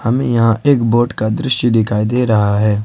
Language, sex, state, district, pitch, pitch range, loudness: Hindi, male, Jharkhand, Ranchi, 115 Hz, 110-125 Hz, -14 LUFS